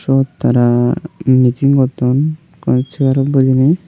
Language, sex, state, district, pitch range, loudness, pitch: Chakma, male, Tripura, Unakoti, 130-150 Hz, -14 LUFS, 135 Hz